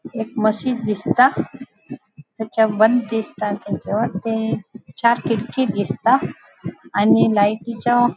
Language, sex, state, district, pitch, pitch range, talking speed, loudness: Konkani, female, Goa, North and South Goa, 225 Hz, 210-240 Hz, 95 wpm, -19 LUFS